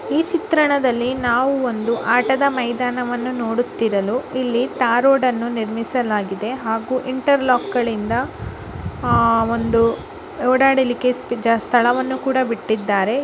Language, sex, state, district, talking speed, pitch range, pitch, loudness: Kannada, female, Karnataka, Bijapur, 90 wpm, 230-260 Hz, 245 Hz, -19 LUFS